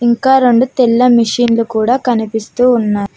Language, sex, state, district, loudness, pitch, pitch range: Telugu, female, Telangana, Mahabubabad, -12 LUFS, 240 Hz, 225-250 Hz